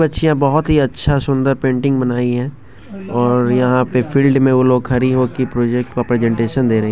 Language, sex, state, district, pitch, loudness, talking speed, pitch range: Maithili, male, Bihar, Begusarai, 125 Hz, -15 LUFS, 210 wpm, 120-135 Hz